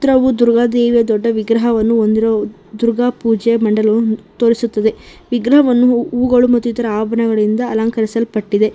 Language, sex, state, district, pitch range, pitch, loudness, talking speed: Kannada, female, Karnataka, Bangalore, 220-240 Hz, 230 Hz, -14 LUFS, 110 wpm